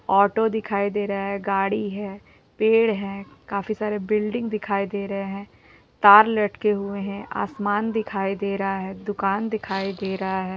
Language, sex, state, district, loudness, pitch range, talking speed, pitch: Hindi, female, Bihar, Jahanabad, -23 LUFS, 195-210 Hz, 170 wpm, 200 Hz